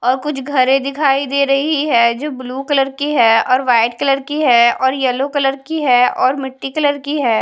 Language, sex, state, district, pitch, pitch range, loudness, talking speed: Hindi, female, Haryana, Charkhi Dadri, 270 Hz, 255-285 Hz, -15 LUFS, 220 wpm